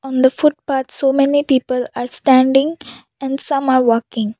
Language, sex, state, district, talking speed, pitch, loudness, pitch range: English, female, Assam, Kamrup Metropolitan, 165 wpm, 265 Hz, -16 LUFS, 250-275 Hz